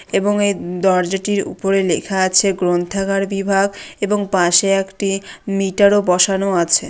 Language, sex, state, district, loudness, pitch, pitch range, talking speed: Bengali, female, West Bengal, Dakshin Dinajpur, -17 LUFS, 195 Hz, 185-200 Hz, 130 wpm